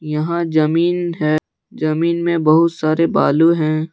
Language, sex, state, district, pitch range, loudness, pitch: Hindi, male, Jharkhand, Deoghar, 155-170 Hz, -16 LUFS, 165 Hz